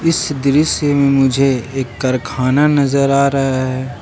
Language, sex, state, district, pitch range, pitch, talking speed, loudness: Hindi, male, Jharkhand, Ranchi, 130-140 Hz, 135 Hz, 150 wpm, -15 LUFS